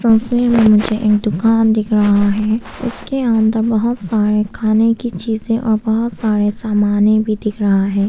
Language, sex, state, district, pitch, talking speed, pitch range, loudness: Hindi, female, Arunachal Pradesh, Papum Pare, 215 Hz, 170 wpm, 210-225 Hz, -15 LUFS